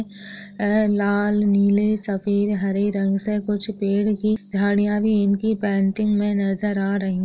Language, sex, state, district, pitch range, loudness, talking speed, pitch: Hindi, female, Maharashtra, Sindhudurg, 200-210 Hz, -21 LUFS, 140 wpm, 205 Hz